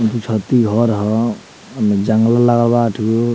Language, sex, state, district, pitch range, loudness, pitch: Bhojpuri, male, Bihar, Muzaffarpur, 110-120 Hz, -15 LUFS, 115 Hz